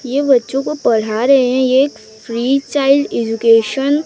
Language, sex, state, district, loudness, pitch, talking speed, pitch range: Hindi, female, Odisha, Sambalpur, -14 LUFS, 260 Hz, 175 wpm, 230-275 Hz